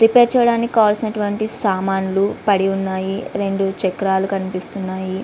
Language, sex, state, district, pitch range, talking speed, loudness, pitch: Telugu, female, Andhra Pradesh, Visakhapatnam, 190-215 Hz, 115 wpm, -18 LUFS, 195 Hz